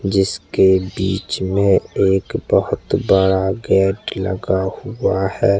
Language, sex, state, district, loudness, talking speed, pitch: Hindi, male, Chhattisgarh, Jashpur, -18 LUFS, 105 wpm, 95 Hz